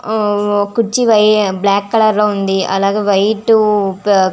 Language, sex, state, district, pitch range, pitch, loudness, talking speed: Telugu, female, Andhra Pradesh, Visakhapatnam, 200-215 Hz, 205 Hz, -13 LUFS, 140 wpm